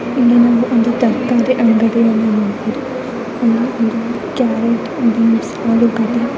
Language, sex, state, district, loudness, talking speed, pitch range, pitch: Kannada, female, Karnataka, Mysore, -15 LUFS, 55 wpm, 230-245 Hz, 235 Hz